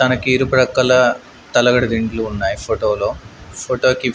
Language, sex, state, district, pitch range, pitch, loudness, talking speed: Telugu, male, Andhra Pradesh, Manyam, 120-130 Hz, 125 Hz, -16 LUFS, 115 wpm